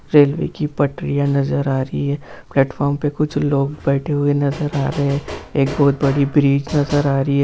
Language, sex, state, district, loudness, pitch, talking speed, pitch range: Hindi, male, Bihar, Jamui, -18 LUFS, 140 Hz, 195 wpm, 140-145 Hz